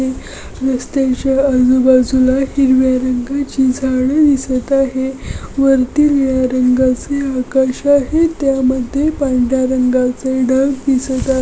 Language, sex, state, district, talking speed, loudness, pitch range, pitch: Marathi, female, Maharashtra, Aurangabad, 100 wpm, -14 LUFS, 255-275 Hz, 260 Hz